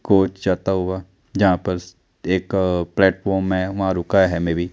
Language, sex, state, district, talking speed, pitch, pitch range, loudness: Hindi, male, Chandigarh, Chandigarh, 190 wpm, 95 Hz, 90-95 Hz, -20 LUFS